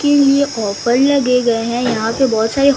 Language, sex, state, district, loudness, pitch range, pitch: Hindi, female, Odisha, Sambalpur, -15 LUFS, 225-280 Hz, 250 Hz